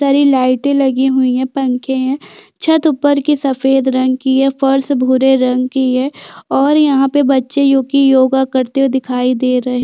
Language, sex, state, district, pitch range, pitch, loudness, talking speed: Hindi, female, Chhattisgarh, Jashpur, 260-275 Hz, 265 Hz, -13 LUFS, 190 wpm